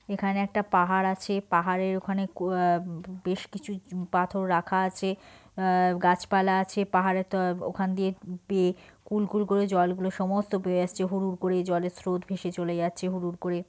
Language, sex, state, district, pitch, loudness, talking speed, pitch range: Bengali, female, West Bengal, Purulia, 185 Hz, -28 LUFS, 195 wpm, 180-195 Hz